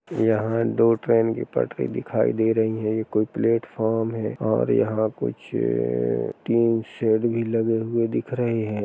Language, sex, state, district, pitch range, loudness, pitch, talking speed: Hindi, male, Uttar Pradesh, Jalaun, 110-115 Hz, -23 LUFS, 115 Hz, 170 wpm